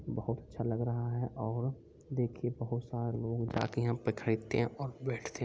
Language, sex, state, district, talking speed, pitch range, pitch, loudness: Angika, male, Bihar, Begusarai, 200 wpm, 115-125 Hz, 120 Hz, -36 LUFS